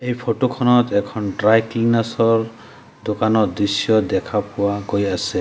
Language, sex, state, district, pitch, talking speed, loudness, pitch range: Assamese, male, Assam, Sonitpur, 110 Hz, 145 wpm, -19 LUFS, 100-115 Hz